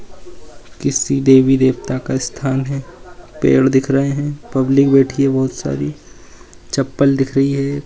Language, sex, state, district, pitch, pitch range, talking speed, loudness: Hindi, male, Bihar, Jahanabad, 135 Hz, 130-140 Hz, 135 wpm, -16 LUFS